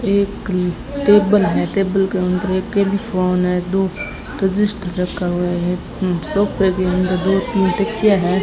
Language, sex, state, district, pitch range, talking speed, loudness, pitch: Hindi, female, Rajasthan, Bikaner, 180-200 Hz, 155 wpm, -18 LUFS, 190 Hz